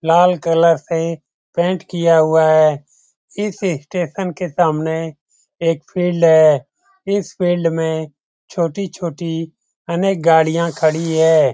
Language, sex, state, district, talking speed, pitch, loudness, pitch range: Hindi, male, Bihar, Jamui, 120 wpm, 165 Hz, -17 LUFS, 160-180 Hz